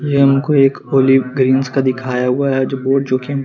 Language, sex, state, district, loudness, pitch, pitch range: Hindi, male, Chandigarh, Chandigarh, -15 LUFS, 135 Hz, 130-135 Hz